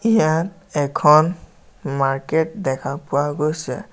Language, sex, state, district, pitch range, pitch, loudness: Assamese, male, Assam, Sonitpur, 140-170 Hz, 150 Hz, -20 LUFS